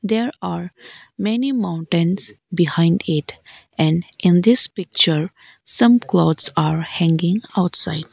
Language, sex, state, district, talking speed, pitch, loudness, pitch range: English, female, Arunachal Pradesh, Lower Dibang Valley, 110 wpm, 175 Hz, -18 LUFS, 165-205 Hz